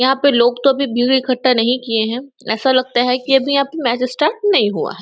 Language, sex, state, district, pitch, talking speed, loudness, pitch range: Hindi, female, Chhattisgarh, Raigarh, 255 Hz, 225 wpm, -16 LUFS, 245-275 Hz